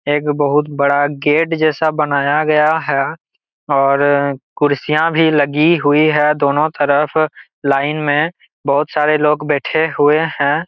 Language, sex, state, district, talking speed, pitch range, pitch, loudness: Hindi, male, Jharkhand, Jamtara, 135 wpm, 145-155 Hz, 150 Hz, -15 LUFS